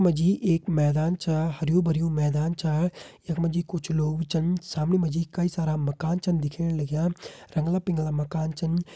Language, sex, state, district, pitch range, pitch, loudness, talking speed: Hindi, male, Uttarakhand, Uttarkashi, 155-175 Hz, 165 Hz, -26 LUFS, 180 wpm